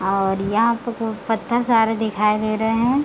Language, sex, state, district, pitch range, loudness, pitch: Hindi, female, Jharkhand, Jamtara, 210-230 Hz, -20 LUFS, 225 Hz